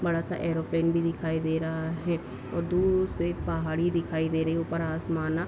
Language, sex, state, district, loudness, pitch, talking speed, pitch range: Hindi, female, Bihar, Darbhanga, -29 LUFS, 165 Hz, 220 wpm, 160-170 Hz